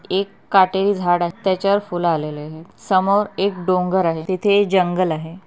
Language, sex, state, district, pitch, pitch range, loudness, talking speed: Marathi, female, Maharashtra, Pune, 185 Hz, 175-195 Hz, -19 LUFS, 175 wpm